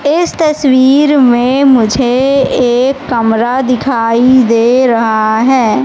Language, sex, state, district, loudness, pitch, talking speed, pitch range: Hindi, female, Madhya Pradesh, Katni, -10 LUFS, 255 Hz, 105 wpm, 230-270 Hz